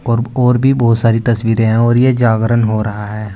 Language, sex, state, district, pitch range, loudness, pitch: Hindi, male, Uttar Pradesh, Saharanpur, 110-120 Hz, -13 LUFS, 115 Hz